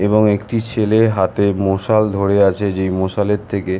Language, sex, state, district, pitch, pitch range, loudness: Bengali, male, West Bengal, North 24 Parganas, 100 Hz, 95-110 Hz, -16 LUFS